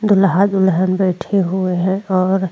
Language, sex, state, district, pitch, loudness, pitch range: Hindi, female, Goa, North and South Goa, 190 Hz, -16 LUFS, 185-195 Hz